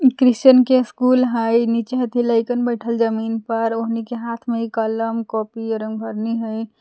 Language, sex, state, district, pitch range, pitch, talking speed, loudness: Magahi, female, Jharkhand, Palamu, 225-245 Hz, 230 Hz, 175 wpm, -19 LUFS